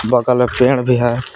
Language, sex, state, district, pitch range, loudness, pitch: Hindi, male, Jharkhand, Palamu, 120-125 Hz, -14 LUFS, 125 Hz